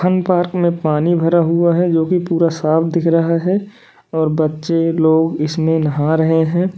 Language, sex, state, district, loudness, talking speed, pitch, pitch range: Hindi, male, Uttar Pradesh, Lalitpur, -15 LUFS, 175 wpm, 165 Hz, 160-175 Hz